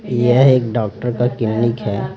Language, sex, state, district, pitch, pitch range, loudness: Hindi, male, Bihar, Patna, 120 Hz, 110-125 Hz, -16 LUFS